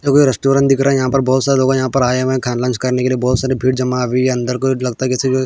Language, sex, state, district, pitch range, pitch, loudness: Hindi, male, Bihar, Patna, 125-135 Hz, 130 Hz, -15 LUFS